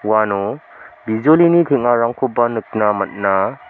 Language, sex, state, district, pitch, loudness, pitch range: Garo, male, Meghalaya, South Garo Hills, 110 Hz, -16 LUFS, 100-120 Hz